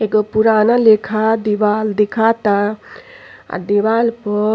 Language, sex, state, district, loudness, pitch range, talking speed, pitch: Bhojpuri, female, Uttar Pradesh, Ghazipur, -15 LUFS, 210-225 Hz, 120 wpm, 215 Hz